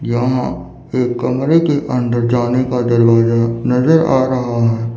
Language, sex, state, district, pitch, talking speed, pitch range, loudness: Hindi, male, Chandigarh, Chandigarh, 125 Hz, 145 wpm, 120-130 Hz, -15 LUFS